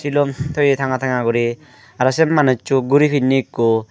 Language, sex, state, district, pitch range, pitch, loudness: Chakma, female, Tripura, Dhalai, 125-145 Hz, 135 Hz, -17 LUFS